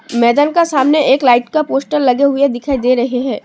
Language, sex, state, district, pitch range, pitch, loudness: Hindi, female, Assam, Sonitpur, 250-290 Hz, 270 Hz, -13 LUFS